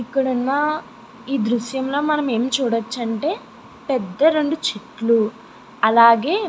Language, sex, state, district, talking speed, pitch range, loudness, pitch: Telugu, female, Andhra Pradesh, Chittoor, 130 wpm, 230-295 Hz, -19 LUFS, 255 Hz